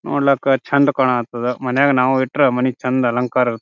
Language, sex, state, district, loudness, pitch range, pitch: Kannada, male, Karnataka, Bijapur, -17 LUFS, 125-135 Hz, 130 Hz